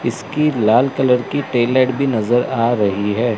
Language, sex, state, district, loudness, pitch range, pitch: Hindi, male, Chandigarh, Chandigarh, -16 LUFS, 115-135 Hz, 125 Hz